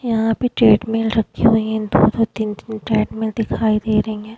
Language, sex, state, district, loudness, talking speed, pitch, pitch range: Hindi, female, Goa, North and South Goa, -18 LUFS, 205 wpm, 220 Hz, 215-225 Hz